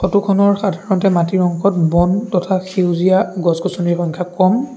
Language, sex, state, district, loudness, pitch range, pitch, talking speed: Assamese, male, Assam, Sonitpur, -16 LUFS, 175-195 Hz, 185 Hz, 140 wpm